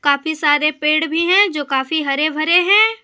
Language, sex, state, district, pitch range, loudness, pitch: Hindi, female, Jharkhand, Deoghar, 295-350 Hz, -15 LUFS, 310 Hz